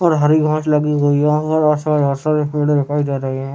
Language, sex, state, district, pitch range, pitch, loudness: Hindi, male, Chhattisgarh, Raigarh, 145-155 Hz, 150 Hz, -16 LUFS